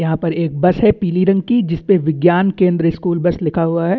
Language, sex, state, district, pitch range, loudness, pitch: Hindi, male, Chhattisgarh, Bastar, 165-185 Hz, -15 LUFS, 175 Hz